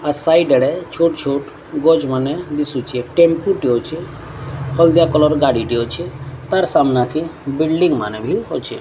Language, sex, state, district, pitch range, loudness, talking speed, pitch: Odia, female, Odisha, Sambalpur, 135-165 Hz, -16 LUFS, 155 wpm, 150 Hz